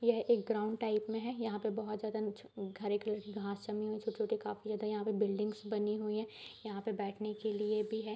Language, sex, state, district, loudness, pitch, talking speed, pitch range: Hindi, female, Bihar, East Champaran, -38 LUFS, 215 Hz, 205 wpm, 210-220 Hz